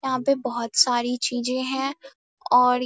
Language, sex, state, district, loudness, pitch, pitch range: Hindi, female, Bihar, Darbhanga, -23 LUFS, 250 Hz, 245-270 Hz